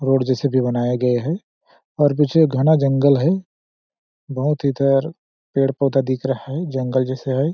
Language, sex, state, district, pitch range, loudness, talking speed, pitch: Hindi, male, Chhattisgarh, Balrampur, 130-150 Hz, -19 LUFS, 165 wpm, 135 Hz